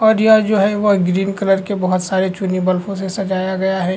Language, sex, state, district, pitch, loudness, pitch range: Hindi, male, Uttar Pradesh, Varanasi, 190 Hz, -16 LUFS, 185-200 Hz